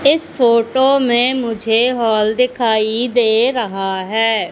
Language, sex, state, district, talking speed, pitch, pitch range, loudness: Hindi, female, Madhya Pradesh, Katni, 120 wpm, 235 Hz, 220-250 Hz, -15 LUFS